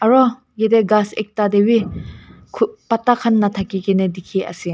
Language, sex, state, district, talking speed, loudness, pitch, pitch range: Nagamese, female, Nagaland, Kohima, 150 wpm, -17 LUFS, 215 Hz, 195-230 Hz